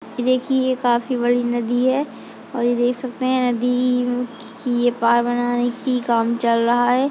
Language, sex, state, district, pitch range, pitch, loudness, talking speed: Hindi, female, Uttar Pradesh, Budaun, 240-255 Hz, 245 Hz, -20 LUFS, 160 wpm